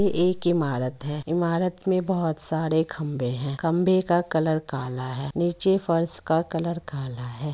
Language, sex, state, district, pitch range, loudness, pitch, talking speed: Hindi, male, Bihar, Samastipur, 145-175 Hz, -21 LUFS, 165 Hz, 175 wpm